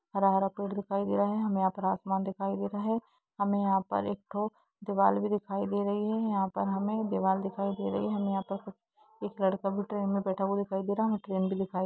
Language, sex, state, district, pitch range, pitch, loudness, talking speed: Hindi, female, Jharkhand, Jamtara, 195-205 Hz, 200 Hz, -31 LUFS, 235 wpm